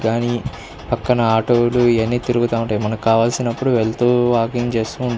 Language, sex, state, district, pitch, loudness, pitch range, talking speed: Telugu, male, Andhra Pradesh, Guntur, 120 Hz, -18 LUFS, 115-120 Hz, 125 wpm